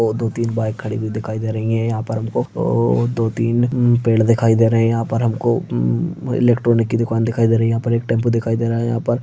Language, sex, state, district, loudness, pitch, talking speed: Hindi, male, Bihar, Purnia, -18 LUFS, 115 Hz, 275 wpm